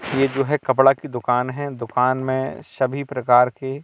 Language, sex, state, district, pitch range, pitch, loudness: Hindi, male, Madhya Pradesh, Katni, 125-135 Hz, 130 Hz, -20 LUFS